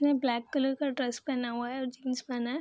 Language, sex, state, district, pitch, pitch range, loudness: Hindi, female, Bihar, Saharsa, 255 Hz, 245-275 Hz, -32 LUFS